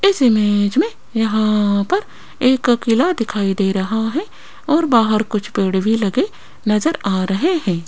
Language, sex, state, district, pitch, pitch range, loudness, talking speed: Hindi, female, Rajasthan, Jaipur, 220 Hz, 205-285 Hz, -17 LUFS, 160 wpm